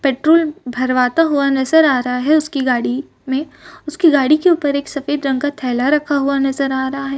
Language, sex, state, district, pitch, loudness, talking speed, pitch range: Hindi, female, Maharashtra, Chandrapur, 280 Hz, -16 LUFS, 210 wpm, 265-300 Hz